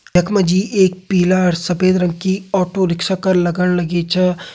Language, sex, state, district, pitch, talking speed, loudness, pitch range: Hindi, male, Uttarakhand, Uttarkashi, 185 Hz, 195 wpm, -16 LUFS, 180-190 Hz